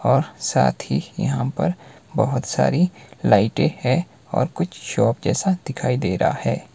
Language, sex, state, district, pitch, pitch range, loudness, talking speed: Hindi, male, Himachal Pradesh, Shimla, 175 Hz, 135-185 Hz, -21 LUFS, 150 wpm